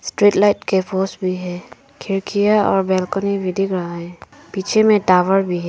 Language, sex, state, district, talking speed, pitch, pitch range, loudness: Hindi, female, Arunachal Pradesh, Papum Pare, 190 wpm, 190 Hz, 185-200 Hz, -18 LUFS